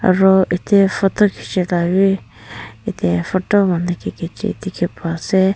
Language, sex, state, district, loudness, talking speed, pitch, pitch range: Nagamese, female, Nagaland, Kohima, -17 LUFS, 75 wpm, 185 Hz, 175-195 Hz